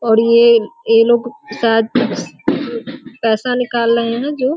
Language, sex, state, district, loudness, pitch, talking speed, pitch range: Hindi, female, Bihar, Sitamarhi, -15 LUFS, 235 Hz, 145 wpm, 230-255 Hz